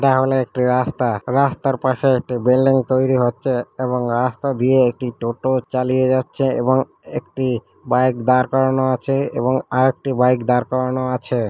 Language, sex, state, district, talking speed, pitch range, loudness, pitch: Bengali, male, West Bengal, Malda, 155 wpm, 125-130 Hz, -18 LUFS, 130 Hz